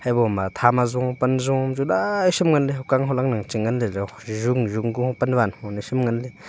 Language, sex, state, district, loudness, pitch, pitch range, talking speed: Wancho, male, Arunachal Pradesh, Longding, -22 LUFS, 125 Hz, 115-130 Hz, 205 wpm